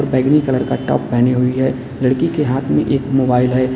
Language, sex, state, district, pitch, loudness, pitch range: Hindi, male, Uttar Pradesh, Lalitpur, 130 Hz, -16 LUFS, 125-135 Hz